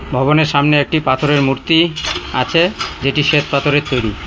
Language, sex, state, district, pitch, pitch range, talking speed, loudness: Bengali, male, West Bengal, Cooch Behar, 145 Hz, 135-155 Hz, 125 wpm, -14 LUFS